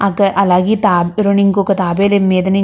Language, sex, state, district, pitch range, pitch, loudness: Telugu, female, Andhra Pradesh, Krishna, 185-200 Hz, 195 Hz, -13 LUFS